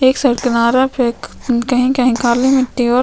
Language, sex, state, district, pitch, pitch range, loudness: Hindi, female, Chhattisgarh, Sukma, 250 Hz, 240-260 Hz, -14 LUFS